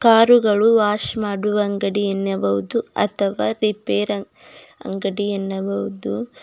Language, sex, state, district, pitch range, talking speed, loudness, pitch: Kannada, female, Karnataka, Bidar, 195-215 Hz, 75 wpm, -20 LUFS, 205 Hz